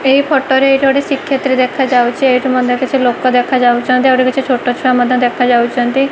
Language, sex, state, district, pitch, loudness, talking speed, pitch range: Odia, female, Odisha, Malkangiri, 255 Hz, -12 LUFS, 175 wpm, 245-270 Hz